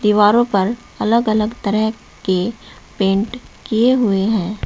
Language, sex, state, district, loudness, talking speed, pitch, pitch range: Hindi, male, Uttar Pradesh, Shamli, -17 LUFS, 130 wpm, 215 Hz, 200-230 Hz